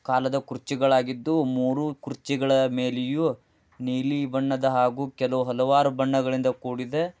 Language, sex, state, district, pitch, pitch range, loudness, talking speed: Kannada, male, Karnataka, Dharwad, 130 Hz, 130-140 Hz, -25 LUFS, 110 wpm